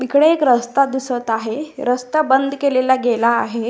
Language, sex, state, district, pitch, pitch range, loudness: Marathi, female, Maharashtra, Solapur, 255 Hz, 240-275 Hz, -17 LUFS